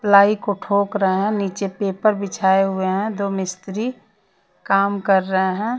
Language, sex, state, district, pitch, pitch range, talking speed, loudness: Hindi, female, Odisha, Nuapada, 200 Hz, 190-205 Hz, 165 wpm, -20 LUFS